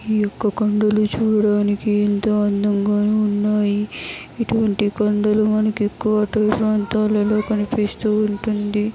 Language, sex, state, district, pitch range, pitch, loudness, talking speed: Telugu, female, Andhra Pradesh, Chittoor, 205-215 Hz, 210 Hz, -19 LUFS, 95 wpm